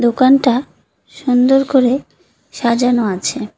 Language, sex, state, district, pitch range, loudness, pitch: Bengali, female, West Bengal, Cooch Behar, 235-270 Hz, -14 LUFS, 250 Hz